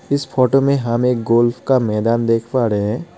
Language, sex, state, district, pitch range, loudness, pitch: Hindi, male, West Bengal, Alipurduar, 115-135 Hz, -17 LUFS, 120 Hz